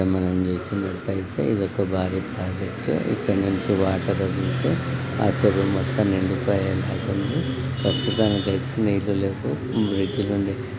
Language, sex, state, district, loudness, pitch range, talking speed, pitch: Telugu, male, Telangana, Nalgonda, -24 LUFS, 95-120 Hz, 130 wpm, 100 Hz